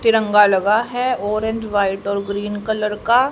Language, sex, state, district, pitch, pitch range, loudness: Hindi, female, Haryana, Rohtak, 210 Hz, 205-225 Hz, -18 LUFS